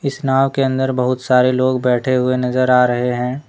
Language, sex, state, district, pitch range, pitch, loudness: Hindi, male, Jharkhand, Deoghar, 125-130 Hz, 130 Hz, -16 LUFS